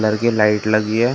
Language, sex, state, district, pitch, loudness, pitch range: Hindi, male, Maharashtra, Gondia, 110 Hz, -17 LUFS, 105-115 Hz